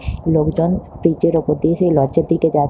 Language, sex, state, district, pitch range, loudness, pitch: Bengali, female, West Bengal, North 24 Parganas, 150-165 Hz, -17 LUFS, 165 Hz